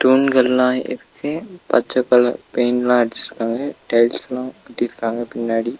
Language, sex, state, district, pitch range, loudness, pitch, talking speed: Tamil, male, Tamil Nadu, Nilgiris, 115-130 Hz, -19 LUFS, 125 Hz, 95 wpm